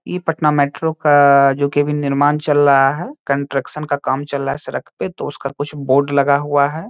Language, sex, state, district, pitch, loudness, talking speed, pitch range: Hindi, male, Bihar, Saharsa, 145 Hz, -16 LUFS, 225 wpm, 140-150 Hz